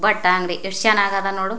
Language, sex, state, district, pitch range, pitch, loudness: Kannada, female, Karnataka, Chamarajanagar, 190-215 Hz, 195 Hz, -18 LUFS